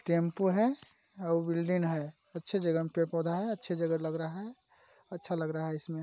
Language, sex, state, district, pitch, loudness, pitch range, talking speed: Hindi, male, Chhattisgarh, Korba, 170 Hz, -33 LUFS, 165-195 Hz, 220 wpm